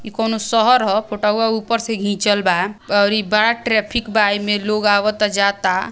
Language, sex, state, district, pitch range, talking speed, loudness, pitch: Bhojpuri, female, Bihar, Gopalganj, 205-225 Hz, 180 wpm, -17 LUFS, 210 Hz